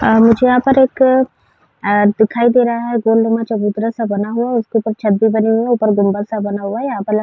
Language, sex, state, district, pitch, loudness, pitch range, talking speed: Hindi, female, Uttar Pradesh, Varanasi, 225 Hz, -14 LUFS, 215-240 Hz, 255 wpm